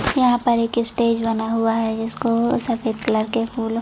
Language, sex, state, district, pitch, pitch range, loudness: Hindi, female, Chhattisgarh, Bilaspur, 230 Hz, 225-235 Hz, -20 LUFS